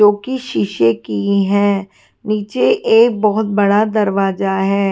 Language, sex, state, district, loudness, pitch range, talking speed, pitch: Hindi, female, Haryana, Charkhi Dadri, -15 LUFS, 195-215 Hz, 135 wpm, 205 Hz